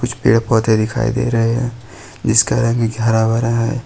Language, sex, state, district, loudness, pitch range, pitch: Hindi, male, Jharkhand, Ranchi, -16 LUFS, 115-120 Hz, 115 Hz